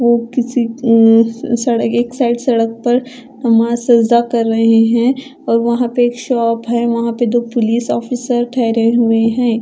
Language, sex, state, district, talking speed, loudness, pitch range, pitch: Hindi, female, Punjab, Fazilka, 170 wpm, -14 LUFS, 230-245 Hz, 235 Hz